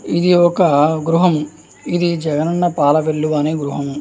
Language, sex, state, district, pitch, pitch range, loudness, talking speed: Telugu, male, Andhra Pradesh, Anantapur, 155 Hz, 150-175 Hz, -16 LUFS, 150 wpm